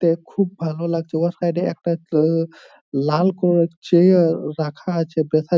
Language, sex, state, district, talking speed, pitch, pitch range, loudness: Bengali, male, West Bengal, Jhargram, 160 wpm, 170 Hz, 160-175 Hz, -20 LUFS